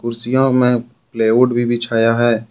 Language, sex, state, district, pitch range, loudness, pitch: Hindi, male, Jharkhand, Deoghar, 115-125 Hz, -15 LUFS, 120 Hz